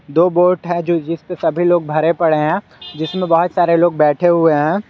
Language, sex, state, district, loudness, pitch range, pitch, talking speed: Hindi, male, Jharkhand, Garhwa, -15 LUFS, 160-175 Hz, 170 Hz, 210 wpm